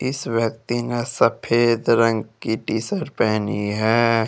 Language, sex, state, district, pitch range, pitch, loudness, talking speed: Hindi, male, Jharkhand, Deoghar, 110-120 Hz, 115 Hz, -21 LUFS, 140 wpm